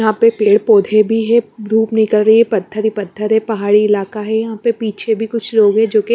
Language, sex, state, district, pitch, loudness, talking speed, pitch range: Hindi, female, Punjab, Pathankot, 220 Hz, -14 LUFS, 255 wpm, 210-225 Hz